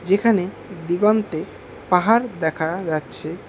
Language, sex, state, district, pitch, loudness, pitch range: Bengali, male, West Bengal, Alipurduar, 180 Hz, -21 LUFS, 160-210 Hz